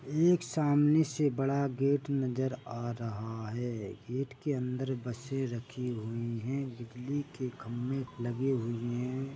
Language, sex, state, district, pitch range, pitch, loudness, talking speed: Hindi, male, Chhattisgarh, Bilaspur, 120-140 Hz, 130 Hz, -33 LUFS, 140 wpm